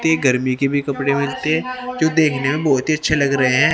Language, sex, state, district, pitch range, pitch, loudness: Hindi, male, Haryana, Rohtak, 135-155 Hz, 140 Hz, -18 LUFS